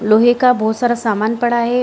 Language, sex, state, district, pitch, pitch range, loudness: Hindi, female, Bihar, Gaya, 235 Hz, 220-240 Hz, -15 LUFS